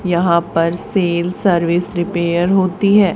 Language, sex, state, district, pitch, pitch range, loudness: Hindi, female, Haryana, Charkhi Dadri, 175 Hz, 170-190 Hz, -16 LUFS